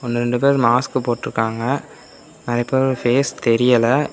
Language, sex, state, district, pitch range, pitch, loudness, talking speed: Tamil, male, Tamil Nadu, Namakkal, 120-130 Hz, 120 Hz, -18 LUFS, 130 wpm